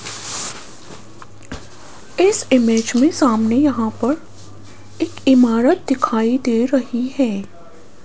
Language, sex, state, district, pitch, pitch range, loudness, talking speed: Hindi, female, Rajasthan, Jaipur, 250 Hz, 225-280 Hz, -17 LUFS, 90 wpm